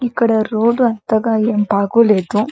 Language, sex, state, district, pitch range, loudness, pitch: Telugu, female, Andhra Pradesh, Krishna, 210-230 Hz, -15 LUFS, 220 Hz